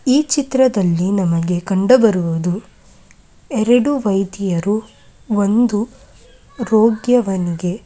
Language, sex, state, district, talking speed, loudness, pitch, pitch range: Kannada, female, Karnataka, Mysore, 60 wpm, -16 LUFS, 210 Hz, 185-245 Hz